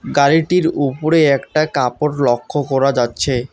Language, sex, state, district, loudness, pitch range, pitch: Bengali, male, West Bengal, Alipurduar, -16 LUFS, 135-155 Hz, 140 Hz